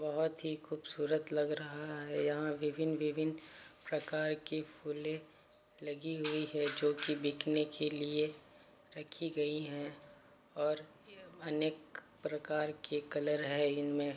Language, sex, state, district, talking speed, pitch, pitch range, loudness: Hindi, male, Uttar Pradesh, Varanasi, 125 wpm, 150 Hz, 150-155 Hz, -37 LUFS